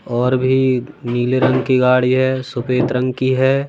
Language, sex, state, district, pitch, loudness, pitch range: Hindi, male, Madhya Pradesh, Katni, 130 Hz, -16 LUFS, 125-130 Hz